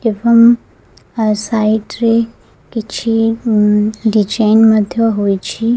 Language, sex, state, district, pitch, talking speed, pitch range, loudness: Odia, female, Odisha, Khordha, 225 Hz, 95 wpm, 215-230 Hz, -13 LUFS